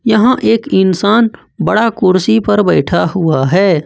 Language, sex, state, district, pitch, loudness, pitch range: Hindi, male, Jharkhand, Ranchi, 195 Hz, -12 LUFS, 180-225 Hz